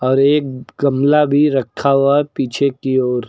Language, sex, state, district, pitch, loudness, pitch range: Hindi, male, Uttar Pradesh, Lucknow, 140 Hz, -15 LUFS, 130-145 Hz